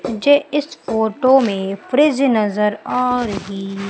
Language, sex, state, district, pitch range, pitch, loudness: Hindi, female, Madhya Pradesh, Umaria, 205-270 Hz, 225 Hz, -17 LUFS